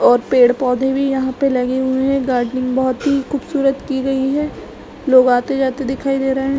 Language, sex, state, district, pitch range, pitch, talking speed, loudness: Hindi, female, Chhattisgarh, Raigarh, 255-275 Hz, 265 Hz, 190 wpm, -16 LUFS